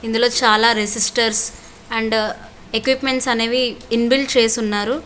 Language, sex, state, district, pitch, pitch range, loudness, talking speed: Telugu, female, Andhra Pradesh, Visakhapatnam, 230 Hz, 225-250 Hz, -17 LUFS, 105 wpm